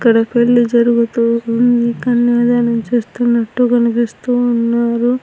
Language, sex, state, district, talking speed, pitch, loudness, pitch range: Telugu, female, Andhra Pradesh, Anantapur, 90 wpm, 235 Hz, -14 LUFS, 235-240 Hz